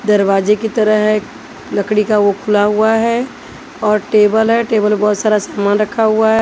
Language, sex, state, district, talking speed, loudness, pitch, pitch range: Hindi, female, Haryana, Charkhi Dadri, 195 wpm, -14 LUFS, 215 Hz, 210-220 Hz